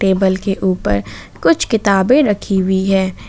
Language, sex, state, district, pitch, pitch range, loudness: Hindi, female, Jharkhand, Ranchi, 190 Hz, 185-195 Hz, -15 LUFS